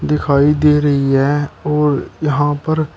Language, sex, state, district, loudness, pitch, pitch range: Hindi, male, Uttar Pradesh, Shamli, -15 LUFS, 145 Hz, 140-150 Hz